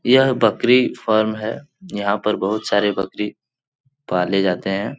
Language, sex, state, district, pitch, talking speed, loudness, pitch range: Hindi, male, Bihar, Jahanabad, 110 Hz, 145 wpm, -19 LUFS, 100-130 Hz